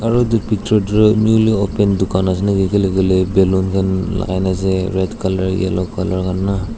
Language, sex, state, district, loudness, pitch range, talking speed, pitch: Nagamese, male, Nagaland, Dimapur, -16 LUFS, 95-105 Hz, 175 wpm, 95 Hz